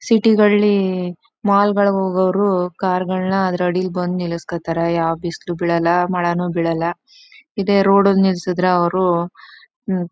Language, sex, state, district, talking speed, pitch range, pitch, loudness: Kannada, female, Karnataka, Chamarajanagar, 115 wpm, 175-200 Hz, 185 Hz, -17 LUFS